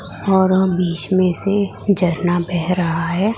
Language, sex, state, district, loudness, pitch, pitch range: Hindi, female, Gujarat, Gandhinagar, -16 LUFS, 180 Hz, 175-190 Hz